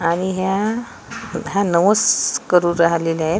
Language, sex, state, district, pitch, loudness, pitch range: Marathi, female, Maharashtra, Washim, 185 Hz, -18 LUFS, 170-215 Hz